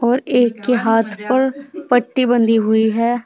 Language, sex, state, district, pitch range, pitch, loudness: Hindi, female, Uttar Pradesh, Saharanpur, 225-255 Hz, 240 Hz, -16 LUFS